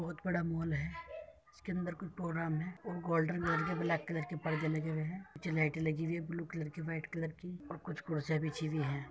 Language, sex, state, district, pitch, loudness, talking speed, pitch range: Hindi, female, Uttar Pradesh, Muzaffarnagar, 165 Hz, -38 LUFS, 235 wpm, 155-175 Hz